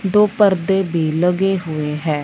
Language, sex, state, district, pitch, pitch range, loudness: Hindi, female, Punjab, Fazilka, 180 Hz, 155-195 Hz, -17 LUFS